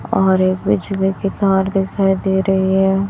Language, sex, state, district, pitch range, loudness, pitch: Hindi, female, Chhattisgarh, Raipur, 190-195 Hz, -16 LUFS, 190 Hz